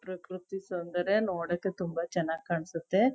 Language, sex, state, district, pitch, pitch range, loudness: Kannada, female, Karnataka, Chamarajanagar, 180 Hz, 170-190 Hz, -32 LUFS